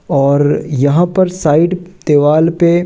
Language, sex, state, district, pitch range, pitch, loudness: Hindi, male, Madhya Pradesh, Katni, 145-175 Hz, 160 Hz, -12 LUFS